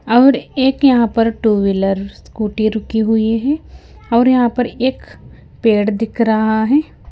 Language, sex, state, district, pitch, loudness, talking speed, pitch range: Hindi, female, Himachal Pradesh, Shimla, 225 Hz, -15 LUFS, 150 wpm, 220-255 Hz